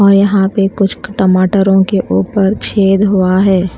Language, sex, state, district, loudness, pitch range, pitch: Hindi, female, Himachal Pradesh, Shimla, -11 LUFS, 190-200 Hz, 195 Hz